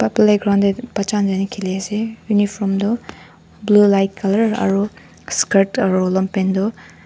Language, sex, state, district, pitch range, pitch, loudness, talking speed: Nagamese, female, Nagaland, Dimapur, 195-210 Hz, 200 Hz, -18 LUFS, 155 wpm